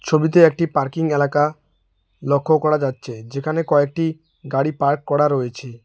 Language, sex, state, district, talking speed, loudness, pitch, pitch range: Bengali, male, West Bengal, Alipurduar, 135 wpm, -19 LUFS, 145 Hz, 135-155 Hz